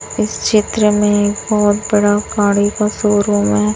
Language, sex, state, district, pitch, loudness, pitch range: Hindi, female, Chhattisgarh, Raipur, 210 Hz, -14 LUFS, 205-210 Hz